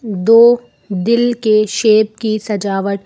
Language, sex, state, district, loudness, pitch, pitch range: Hindi, female, Madhya Pradesh, Bhopal, -13 LUFS, 215 Hz, 205-230 Hz